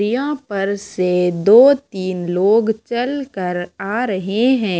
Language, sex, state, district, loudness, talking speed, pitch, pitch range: Hindi, female, Maharashtra, Mumbai Suburban, -17 LUFS, 125 wpm, 205 Hz, 185-240 Hz